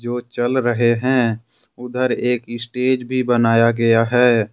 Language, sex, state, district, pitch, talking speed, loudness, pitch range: Hindi, male, Jharkhand, Ranchi, 120 Hz, 145 wpm, -17 LUFS, 115-125 Hz